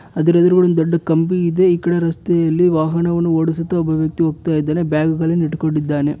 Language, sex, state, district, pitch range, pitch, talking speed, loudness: Kannada, male, Karnataka, Bellary, 160-170 Hz, 165 Hz, 165 wpm, -16 LUFS